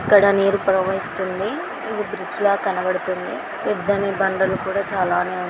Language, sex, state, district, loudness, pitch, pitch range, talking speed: Telugu, female, Andhra Pradesh, Srikakulam, -21 LUFS, 195 Hz, 185-200 Hz, 130 wpm